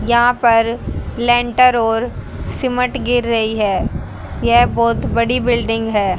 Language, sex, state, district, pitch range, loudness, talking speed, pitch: Hindi, female, Haryana, Jhajjar, 225-245 Hz, -16 LUFS, 125 wpm, 235 Hz